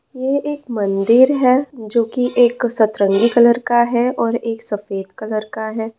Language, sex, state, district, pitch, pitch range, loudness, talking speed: Hindi, female, West Bengal, Purulia, 235 Hz, 220-245 Hz, -17 LUFS, 170 wpm